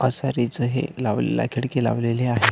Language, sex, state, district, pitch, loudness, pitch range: Marathi, male, Maharashtra, Solapur, 120 Hz, -23 LUFS, 120-130 Hz